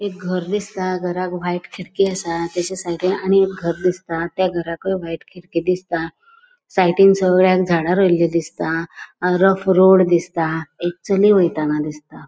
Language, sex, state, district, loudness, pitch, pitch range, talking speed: Konkani, female, Goa, North and South Goa, -18 LUFS, 180 Hz, 170-190 Hz, 140 wpm